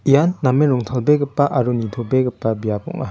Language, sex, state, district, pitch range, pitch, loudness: Garo, male, Meghalaya, West Garo Hills, 120-145 Hz, 130 Hz, -18 LUFS